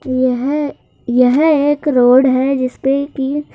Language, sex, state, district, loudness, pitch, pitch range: Hindi, male, Madhya Pradesh, Bhopal, -14 LUFS, 270 Hz, 255-290 Hz